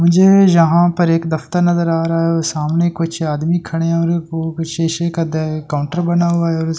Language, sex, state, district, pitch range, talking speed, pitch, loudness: Hindi, male, Delhi, New Delhi, 160-170 Hz, 240 wpm, 165 Hz, -16 LUFS